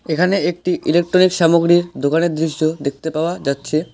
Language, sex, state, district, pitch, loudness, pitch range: Bengali, male, West Bengal, Alipurduar, 165 Hz, -17 LUFS, 155-175 Hz